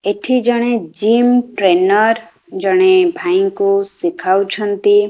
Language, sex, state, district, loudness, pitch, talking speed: Odia, female, Odisha, Khordha, -14 LUFS, 235 Hz, 80 wpm